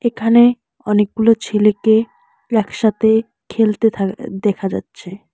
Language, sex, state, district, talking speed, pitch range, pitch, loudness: Bengali, male, West Bengal, Alipurduar, 90 wpm, 210-230 Hz, 220 Hz, -16 LUFS